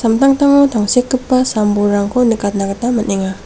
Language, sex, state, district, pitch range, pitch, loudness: Garo, female, Meghalaya, South Garo Hills, 205-255 Hz, 225 Hz, -14 LUFS